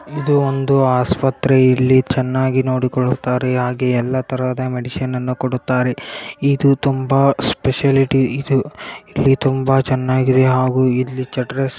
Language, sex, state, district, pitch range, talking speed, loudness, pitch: Kannada, male, Karnataka, Dharwad, 125-135 Hz, 105 wpm, -17 LUFS, 130 Hz